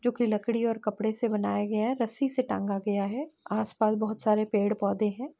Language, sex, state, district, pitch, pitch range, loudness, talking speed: Hindi, female, Uttar Pradesh, Etah, 220 Hz, 210-235 Hz, -29 LUFS, 235 wpm